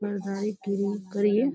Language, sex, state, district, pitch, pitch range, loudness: Hindi, female, Uttar Pradesh, Deoria, 200 Hz, 200-205 Hz, -28 LUFS